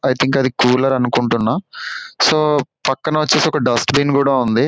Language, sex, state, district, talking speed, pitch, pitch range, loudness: Telugu, male, Telangana, Karimnagar, 165 wpm, 135 Hz, 125-155 Hz, -16 LUFS